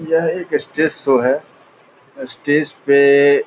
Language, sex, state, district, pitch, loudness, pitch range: Angika, male, Bihar, Purnia, 145 Hz, -16 LUFS, 140-165 Hz